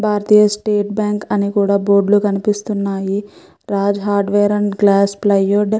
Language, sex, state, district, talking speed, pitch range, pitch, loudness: Telugu, female, Andhra Pradesh, Chittoor, 145 wpm, 200-210 Hz, 205 Hz, -15 LUFS